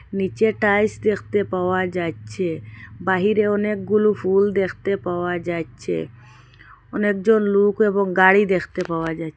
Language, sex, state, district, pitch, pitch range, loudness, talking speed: Bengali, female, Assam, Hailakandi, 190 Hz, 165-205 Hz, -20 LUFS, 115 wpm